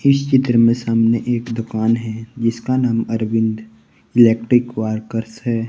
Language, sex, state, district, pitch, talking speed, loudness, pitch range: Hindi, male, Jharkhand, Garhwa, 115 Hz, 135 wpm, -18 LUFS, 110-120 Hz